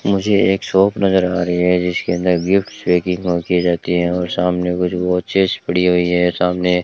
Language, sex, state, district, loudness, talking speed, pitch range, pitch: Hindi, male, Rajasthan, Bikaner, -16 LUFS, 210 wpm, 90-95 Hz, 90 Hz